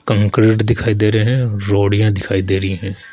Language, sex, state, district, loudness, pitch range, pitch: Hindi, male, Rajasthan, Jaipur, -15 LUFS, 100-110 Hz, 105 Hz